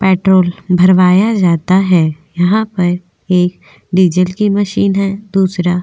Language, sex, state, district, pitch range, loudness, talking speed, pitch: Hindi, female, Goa, North and South Goa, 180-195 Hz, -12 LUFS, 135 wpm, 185 Hz